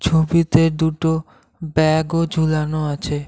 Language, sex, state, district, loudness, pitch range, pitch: Bengali, male, Assam, Kamrup Metropolitan, -18 LUFS, 155-160 Hz, 160 Hz